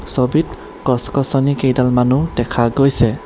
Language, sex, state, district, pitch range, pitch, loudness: Assamese, male, Assam, Kamrup Metropolitan, 125-140 Hz, 130 Hz, -16 LUFS